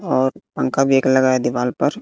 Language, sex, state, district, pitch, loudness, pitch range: Hindi, male, Bihar, West Champaran, 130 Hz, -18 LUFS, 130-135 Hz